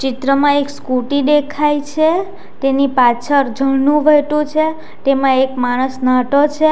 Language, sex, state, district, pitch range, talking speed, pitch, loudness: Gujarati, female, Gujarat, Valsad, 265-295 Hz, 160 wpm, 280 Hz, -15 LUFS